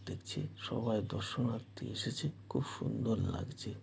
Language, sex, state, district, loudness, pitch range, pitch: Bengali, male, West Bengal, North 24 Parganas, -38 LUFS, 105-125 Hz, 120 Hz